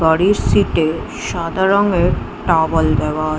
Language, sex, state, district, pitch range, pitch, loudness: Bengali, female, West Bengal, Jhargram, 160-190 Hz, 165 Hz, -16 LUFS